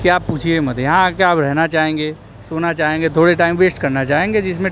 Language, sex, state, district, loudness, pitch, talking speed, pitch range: Hindi, male, Gujarat, Gandhinagar, -15 LUFS, 165 Hz, 215 wpm, 155-180 Hz